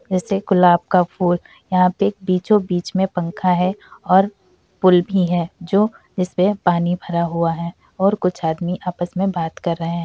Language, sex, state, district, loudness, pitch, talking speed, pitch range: Hindi, female, Uttar Pradesh, Gorakhpur, -19 LUFS, 180 Hz, 180 wpm, 175-190 Hz